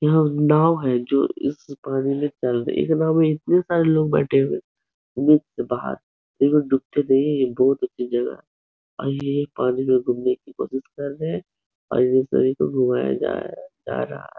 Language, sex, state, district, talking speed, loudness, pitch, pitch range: Hindi, male, Uttar Pradesh, Etah, 205 wpm, -21 LUFS, 140 Hz, 130-150 Hz